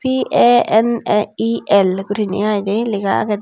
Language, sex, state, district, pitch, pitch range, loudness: Chakma, female, Tripura, Unakoti, 210 Hz, 205-230 Hz, -16 LUFS